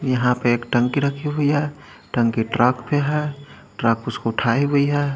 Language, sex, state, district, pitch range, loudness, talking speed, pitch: Hindi, male, Haryana, Charkhi Dadri, 120-145 Hz, -21 LUFS, 185 wpm, 135 Hz